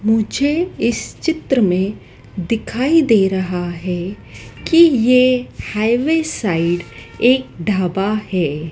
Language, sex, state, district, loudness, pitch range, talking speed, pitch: Hindi, female, Madhya Pradesh, Dhar, -17 LUFS, 185-260 Hz, 105 wpm, 215 Hz